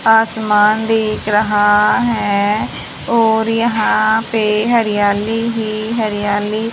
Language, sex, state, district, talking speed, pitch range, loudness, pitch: Hindi, female, Haryana, Charkhi Dadri, 90 wpm, 210-225 Hz, -15 LUFS, 215 Hz